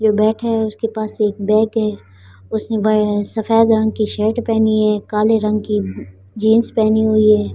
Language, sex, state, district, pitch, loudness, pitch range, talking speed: Hindi, male, Delhi, New Delhi, 215 Hz, -16 LUFS, 210-220 Hz, 185 wpm